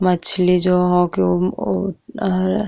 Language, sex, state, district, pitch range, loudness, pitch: Bhojpuri, female, Uttar Pradesh, Deoria, 175-185 Hz, -17 LUFS, 180 Hz